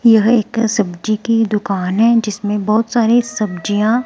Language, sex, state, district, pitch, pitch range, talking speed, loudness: Hindi, female, Himachal Pradesh, Shimla, 220 Hz, 210-230 Hz, 150 wpm, -15 LUFS